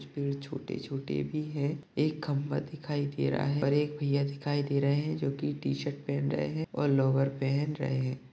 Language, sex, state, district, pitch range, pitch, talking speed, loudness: Hindi, male, Maharashtra, Sindhudurg, 135-145 Hz, 140 Hz, 200 wpm, -31 LUFS